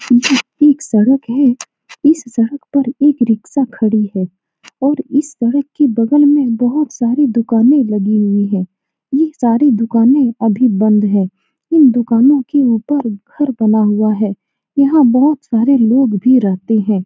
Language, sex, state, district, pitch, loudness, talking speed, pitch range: Hindi, female, Bihar, Saran, 245 Hz, -13 LUFS, 160 wpm, 215-280 Hz